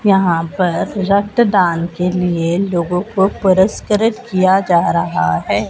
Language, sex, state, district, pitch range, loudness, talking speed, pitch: Hindi, female, Madhya Pradesh, Dhar, 170-195 Hz, -15 LUFS, 105 wpm, 185 Hz